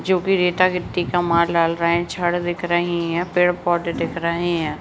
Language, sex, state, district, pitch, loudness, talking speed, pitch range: Hindi, female, Uttarakhand, Tehri Garhwal, 175 Hz, -20 LUFS, 200 wpm, 170-180 Hz